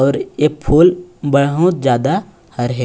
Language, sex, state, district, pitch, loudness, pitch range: Chhattisgarhi, male, Chhattisgarh, Raigarh, 150 Hz, -15 LUFS, 135-180 Hz